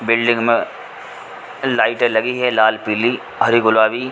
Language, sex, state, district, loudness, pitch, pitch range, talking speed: Hindi, male, Uttar Pradesh, Ghazipur, -16 LUFS, 115 Hz, 110-120 Hz, 130 wpm